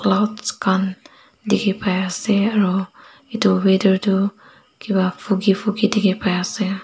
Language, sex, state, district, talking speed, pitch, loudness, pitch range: Nagamese, female, Nagaland, Dimapur, 95 wpm, 195 Hz, -19 LUFS, 190-205 Hz